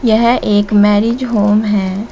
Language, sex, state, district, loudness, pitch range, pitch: Hindi, female, Uttar Pradesh, Shamli, -12 LUFS, 205-230 Hz, 210 Hz